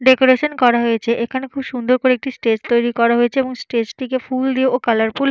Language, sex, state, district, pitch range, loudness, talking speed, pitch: Bengali, female, Jharkhand, Jamtara, 235-260 Hz, -17 LUFS, 235 wpm, 255 Hz